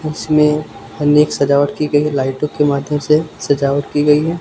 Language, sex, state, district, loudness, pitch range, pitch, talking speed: Hindi, male, Uttar Pradesh, Lucknow, -15 LUFS, 140-150 Hz, 150 Hz, 175 wpm